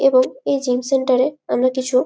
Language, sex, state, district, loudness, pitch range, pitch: Bengali, female, West Bengal, Malda, -18 LUFS, 255-270 Hz, 260 Hz